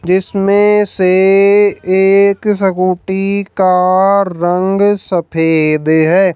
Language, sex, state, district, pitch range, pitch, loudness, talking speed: Hindi, female, Haryana, Jhajjar, 180-200 Hz, 190 Hz, -11 LUFS, 75 wpm